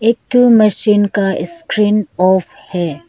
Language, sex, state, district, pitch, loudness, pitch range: Hindi, female, Arunachal Pradesh, Lower Dibang Valley, 205 Hz, -13 LUFS, 180-215 Hz